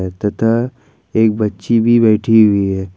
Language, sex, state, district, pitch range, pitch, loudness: Hindi, male, Jharkhand, Ranchi, 100-115 Hz, 110 Hz, -14 LUFS